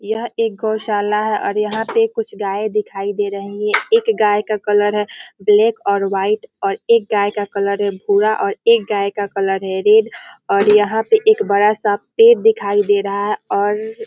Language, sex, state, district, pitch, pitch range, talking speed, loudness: Hindi, female, Bihar, Muzaffarpur, 210 Hz, 205-230 Hz, 205 wpm, -16 LUFS